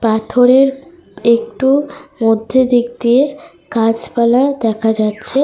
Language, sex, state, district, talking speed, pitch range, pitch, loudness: Bengali, female, Jharkhand, Sahebganj, 100 wpm, 225-270 Hz, 240 Hz, -14 LUFS